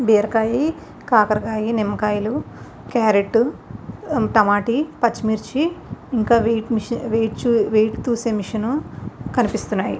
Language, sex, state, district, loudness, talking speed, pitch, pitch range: Telugu, female, Andhra Pradesh, Visakhapatnam, -20 LUFS, 65 wpm, 225 Hz, 215-235 Hz